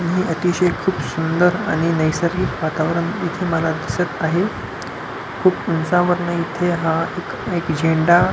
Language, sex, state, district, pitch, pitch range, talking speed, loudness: Marathi, male, Maharashtra, Pune, 170 Hz, 160-180 Hz, 135 wpm, -19 LUFS